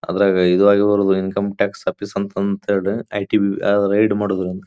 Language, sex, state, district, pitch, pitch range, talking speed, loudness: Kannada, male, Karnataka, Bijapur, 100 Hz, 95-100 Hz, 165 wpm, -18 LUFS